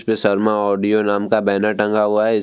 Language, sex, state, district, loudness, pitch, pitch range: Hindi, male, Bihar, Vaishali, -17 LUFS, 105 Hz, 100-110 Hz